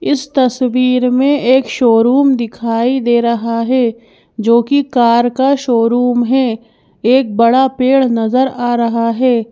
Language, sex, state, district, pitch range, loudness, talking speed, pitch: Hindi, female, Madhya Pradesh, Bhopal, 230-260 Hz, -13 LUFS, 140 wpm, 245 Hz